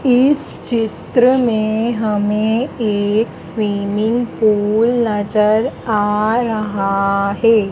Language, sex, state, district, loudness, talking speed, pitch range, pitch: Hindi, female, Madhya Pradesh, Dhar, -16 LUFS, 85 wpm, 205-235 Hz, 215 Hz